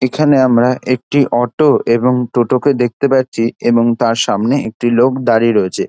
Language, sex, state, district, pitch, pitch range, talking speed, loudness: Bengali, male, West Bengal, Dakshin Dinajpur, 125 Hz, 120-130 Hz, 175 wpm, -13 LUFS